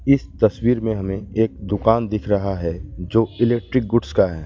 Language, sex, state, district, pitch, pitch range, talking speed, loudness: Hindi, male, West Bengal, Alipurduar, 110 Hz, 95-115 Hz, 190 wpm, -20 LUFS